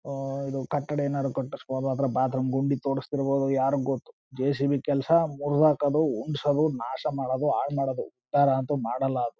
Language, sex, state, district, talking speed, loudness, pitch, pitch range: Kannada, male, Karnataka, Chamarajanagar, 140 wpm, -27 LUFS, 140 Hz, 135-145 Hz